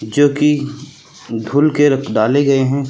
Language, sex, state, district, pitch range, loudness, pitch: Hindi, male, Uttar Pradesh, Lucknow, 130-145 Hz, -15 LUFS, 140 Hz